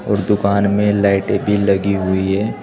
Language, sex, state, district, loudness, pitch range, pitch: Hindi, male, Uttar Pradesh, Saharanpur, -16 LUFS, 100-105 Hz, 100 Hz